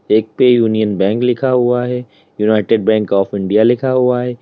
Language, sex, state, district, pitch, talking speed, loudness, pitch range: Hindi, male, Uttar Pradesh, Lalitpur, 115 Hz, 190 wpm, -14 LUFS, 105-125 Hz